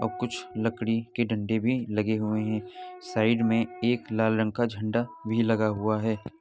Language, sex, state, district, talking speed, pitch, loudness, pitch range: Hindi, male, Uttar Pradesh, Varanasi, 185 wpm, 115 Hz, -27 LUFS, 110-120 Hz